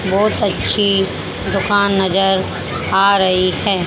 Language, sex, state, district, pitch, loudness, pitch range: Hindi, female, Haryana, Charkhi Dadri, 195 Hz, -15 LUFS, 190-200 Hz